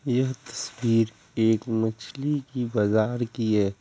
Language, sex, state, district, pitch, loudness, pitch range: Hindi, male, Bihar, Kishanganj, 115 Hz, -26 LUFS, 110-125 Hz